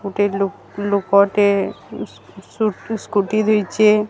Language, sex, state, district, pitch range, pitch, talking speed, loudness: Odia, female, Odisha, Sambalpur, 200-215 Hz, 205 Hz, 105 wpm, -18 LUFS